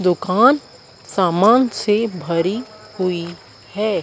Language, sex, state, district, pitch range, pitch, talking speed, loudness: Hindi, female, Madhya Pradesh, Dhar, 175-220 Hz, 190 Hz, 90 wpm, -18 LUFS